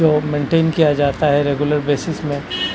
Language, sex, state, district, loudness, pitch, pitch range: Hindi, male, Maharashtra, Mumbai Suburban, -17 LUFS, 145 Hz, 145-155 Hz